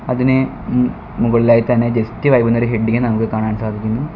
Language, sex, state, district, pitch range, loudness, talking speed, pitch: Malayalam, male, Kerala, Kollam, 110-125 Hz, -16 LUFS, 160 wpm, 115 Hz